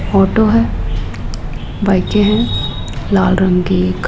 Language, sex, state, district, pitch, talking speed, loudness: Hindi, female, Rajasthan, Jaipur, 180 Hz, 130 wpm, -15 LUFS